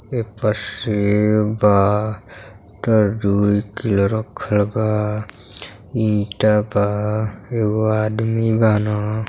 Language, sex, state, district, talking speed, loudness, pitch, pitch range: Bhojpuri, male, Uttar Pradesh, Gorakhpur, 85 wpm, -18 LUFS, 105 Hz, 105-110 Hz